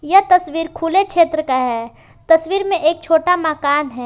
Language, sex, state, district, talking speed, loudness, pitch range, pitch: Hindi, female, Jharkhand, Palamu, 175 wpm, -16 LUFS, 300-360 Hz, 325 Hz